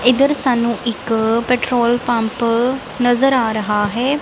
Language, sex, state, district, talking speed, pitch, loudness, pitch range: Punjabi, female, Punjab, Kapurthala, 130 wpm, 240 Hz, -16 LUFS, 230-255 Hz